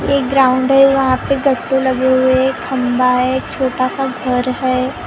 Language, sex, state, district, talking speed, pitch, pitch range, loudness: Hindi, female, Maharashtra, Gondia, 190 wpm, 260 Hz, 255-270 Hz, -14 LUFS